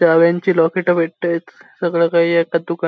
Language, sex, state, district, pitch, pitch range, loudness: Marathi, male, Maharashtra, Sindhudurg, 170 Hz, 165-175 Hz, -16 LUFS